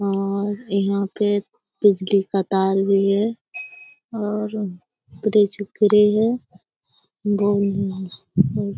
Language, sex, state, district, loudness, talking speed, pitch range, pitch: Hindi, female, Bihar, Jamui, -21 LUFS, 80 wpm, 195-210 Hz, 200 Hz